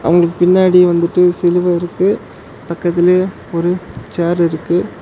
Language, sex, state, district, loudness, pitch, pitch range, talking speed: Tamil, male, Tamil Nadu, Namakkal, -14 LUFS, 175 Hz, 170-180 Hz, 105 wpm